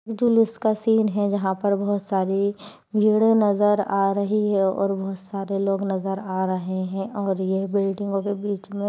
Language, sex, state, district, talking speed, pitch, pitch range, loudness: Hindi, female, Bihar, Kishanganj, 180 wpm, 200 Hz, 195-205 Hz, -23 LUFS